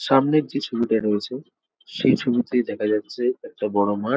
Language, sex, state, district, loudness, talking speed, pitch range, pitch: Bengali, male, West Bengal, Jalpaiguri, -22 LUFS, 170 wpm, 105-130 Hz, 120 Hz